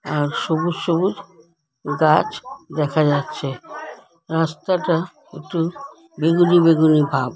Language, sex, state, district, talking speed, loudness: Bengali, female, West Bengal, Dakshin Dinajpur, 90 wpm, -19 LUFS